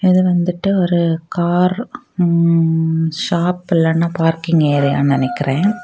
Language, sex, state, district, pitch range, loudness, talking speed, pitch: Tamil, female, Tamil Nadu, Kanyakumari, 160-180 Hz, -16 LUFS, 105 wpm, 170 Hz